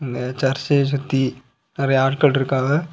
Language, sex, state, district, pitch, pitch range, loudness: Tamil, male, Tamil Nadu, Kanyakumari, 135 Hz, 130-140 Hz, -20 LUFS